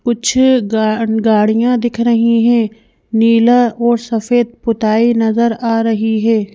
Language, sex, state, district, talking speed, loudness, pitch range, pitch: Hindi, female, Madhya Pradesh, Bhopal, 130 wpm, -13 LUFS, 220-235 Hz, 230 Hz